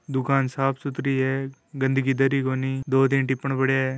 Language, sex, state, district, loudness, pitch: Hindi, male, Rajasthan, Nagaur, -24 LUFS, 135 Hz